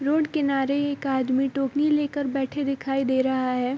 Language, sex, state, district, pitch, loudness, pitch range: Hindi, female, Bihar, Sitamarhi, 275 Hz, -24 LUFS, 265-285 Hz